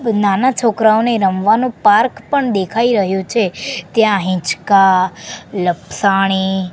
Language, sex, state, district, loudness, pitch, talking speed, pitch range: Gujarati, female, Gujarat, Gandhinagar, -14 LUFS, 200 Hz, 100 wpm, 190-230 Hz